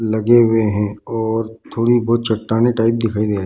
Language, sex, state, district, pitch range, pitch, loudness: Hindi, male, Bihar, Bhagalpur, 110-115 Hz, 115 Hz, -17 LUFS